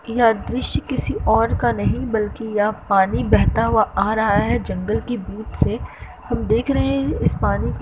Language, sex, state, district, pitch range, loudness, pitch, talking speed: Hindi, female, Uttar Pradesh, Hamirpur, 210-240 Hz, -20 LUFS, 220 Hz, 200 wpm